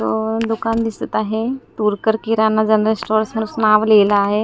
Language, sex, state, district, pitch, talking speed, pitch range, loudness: Marathi, female, Maharashtra, Gondia, 220 Hz, 150 wpm, 215-225 Hz, -17 LUFS